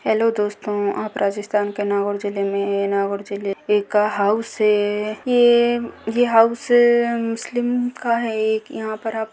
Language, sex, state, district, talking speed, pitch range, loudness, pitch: Hindi, female, Rajasthan, Nagaur, 155 wpm, 205-235 Hz, -20 LUFS, 215 Hz